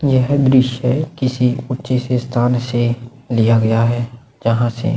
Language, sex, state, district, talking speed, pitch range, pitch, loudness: Hindi, male, Maharashtra, Aurangabad, 145 wpm, 120-130 Hz, 125 Hz, -17 LUFS